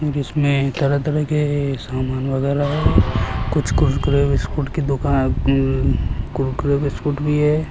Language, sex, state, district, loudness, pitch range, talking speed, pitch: Hindi, male, Rajasthan, Jaipur, -19 LUFS, 135-145 Hz, 115 wpm, 140 Hz